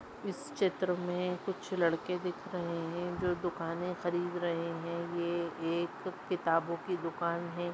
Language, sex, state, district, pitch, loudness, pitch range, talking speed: Hindi, female, Maharashtra, Nagpur, 175 Hz, -35 LUFS, 170-180 Hz, 145 wpm